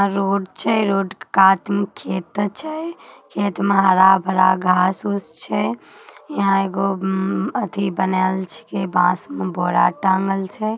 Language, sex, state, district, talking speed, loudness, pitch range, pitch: Magahi, female, Bihar, Samastipur, 135 wpm, -19 LUFS, 185-200 Hz, 190 Hz